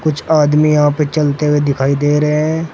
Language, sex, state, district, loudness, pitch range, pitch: Hindi, male, Uttar Pradesh, Saharanpur, -13 LUFS, 145-155 Hz, 150 Hz